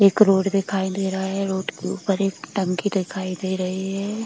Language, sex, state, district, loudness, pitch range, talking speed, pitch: Hindi, female, Bihar, Kishanganj, -23 LUFS, 190-195 Hz, 210 wpm, 195 Hz